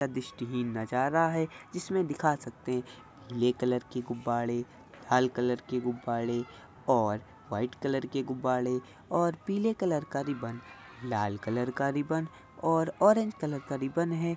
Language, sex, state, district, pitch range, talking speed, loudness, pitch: Hindi, female, Bihar, Muzaffarpur, 120-155 Hz, 150 wpm, -31 LUFS, 125 Hz